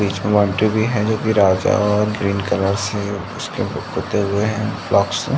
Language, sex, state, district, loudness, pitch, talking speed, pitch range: Hindi, male, Uttar Pradesh, Jalaun, -19 LUFS, 105 Hz, 180 wpm, 100-110 Hz